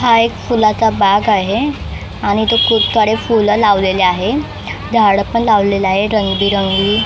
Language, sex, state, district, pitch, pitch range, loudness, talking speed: Marathi, female, Maharashtra, Mumbai Suburban, 205 Hz, 195-225 Hz, -13 LUFS, 155 wpm